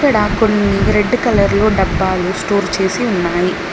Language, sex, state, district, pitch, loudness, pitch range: Telugu, female, Telangana, Mahabubabad, 200 Hz, -14 LUFS, 190-215 Hz